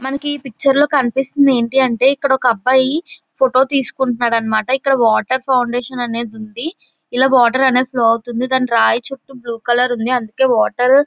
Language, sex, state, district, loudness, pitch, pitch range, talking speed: Telugu, female, Andhra Pradesh, Visakhapatnam, -15 LUFS, 255 Hz, 240-270 Hz, 170 wpm